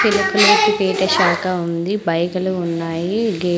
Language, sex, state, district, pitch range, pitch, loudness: Telugu, female, Andhra Pradesh, Sri Satya Sai, 170-205 Hz, 185 Hz, -17 LUFS